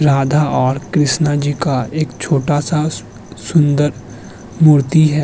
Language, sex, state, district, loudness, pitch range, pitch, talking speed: Hindi, male, Uttar Pradesh, Hamirpur, -15 LUFS, 130-155 Hz, 145 Hz, 115 wpm